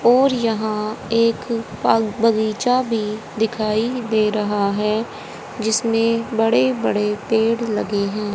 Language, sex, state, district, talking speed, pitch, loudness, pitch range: Hindi, female, Haryana, Jhajjar, 110 wpm, 220 Hz, -19 LUFS, 210-230 Hz